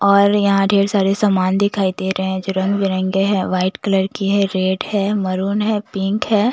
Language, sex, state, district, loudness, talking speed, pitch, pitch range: Hindi, female, Bihar, Patna, -17 LUFS, 210 wpm, 195 Hz, 190-200 Hz